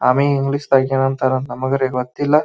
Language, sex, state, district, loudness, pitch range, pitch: Kannada, male, Karnataka, Bijapur, -18 LUFS, 130-140 Hz, 135 Hz